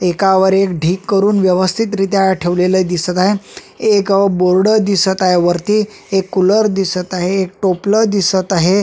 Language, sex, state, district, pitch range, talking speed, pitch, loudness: Marathi, male, Maharashtra, Solapur, 185-200 Hz, 150 wpm, 190 Hz, -14 LUFS